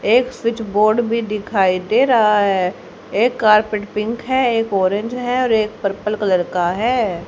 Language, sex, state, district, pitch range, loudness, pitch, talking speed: Hindi, female, Haryana, Jhajjar, 195-235 Hz, -17 LUFS, 215 Hz, 175 wpm